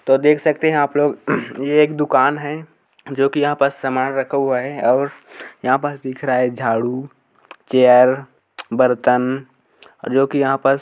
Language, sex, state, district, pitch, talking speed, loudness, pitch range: Hindi, male, Chhattisgarh, Korba, 135 Hz, 170 wpm, -17 LUFS, 130-145 Hz